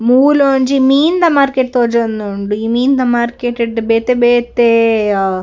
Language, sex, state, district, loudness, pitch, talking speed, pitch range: Tulu, female, Karnataka, Dakshina Kannada, -12 LUFS, 240 Hz, 100 wpm, 225-265 Hz